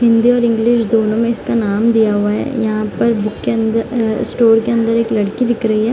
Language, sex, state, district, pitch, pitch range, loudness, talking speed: Hindi, female, Bihar, East Champaran, 225 Hz, 220-235 Hz, -15 LUFS, 240 wpm